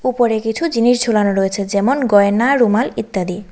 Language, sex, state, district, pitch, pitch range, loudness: Bengali, female, Tripura, West Tripura, 220 Hz, 200-245 Hz, -15 LUFS